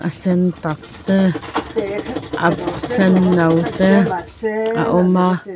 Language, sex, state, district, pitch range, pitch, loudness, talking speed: Mizo, female, Mizoram, Aizawl, 165-190 Hz, 180 Hz, -17 LUFS, 110 wpm